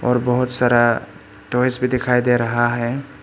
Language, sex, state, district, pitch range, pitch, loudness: Hindi, male, Arunachal Pradesh, Papum Pare, 120-125 Hz, 125 Hz, -18 LUFS